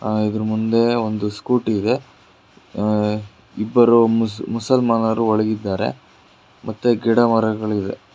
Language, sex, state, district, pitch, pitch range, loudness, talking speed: Kannada, male, Karnataka, Bangalore, 110 Hz, 105-115 Hz, -19 LUFS, 95 wpm